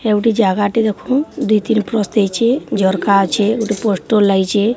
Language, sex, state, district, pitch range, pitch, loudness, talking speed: Odia, female, Odisha, Sambalpur, 200-225 Hz, 215 Hz, -15 LUFS, 150 wpm